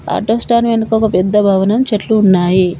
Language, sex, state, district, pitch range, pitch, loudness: Telugu, female, Telangana, Komaram Bheem, 190-225 Hz, 210 Hz, -12 LUFS